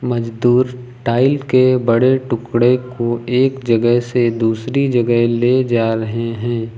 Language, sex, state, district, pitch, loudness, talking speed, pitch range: Hindi, male, Uttar Pradesh, Lucknow, 120 Hz, -16 LUFS, 135 wpm, 115-125 Hz